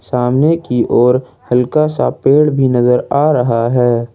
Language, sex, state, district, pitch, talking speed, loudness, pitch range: Hindi, male, Jharkhand, Ranchi, 125 Hz, 160 wpm, -13 LUFS, 120-145 Hz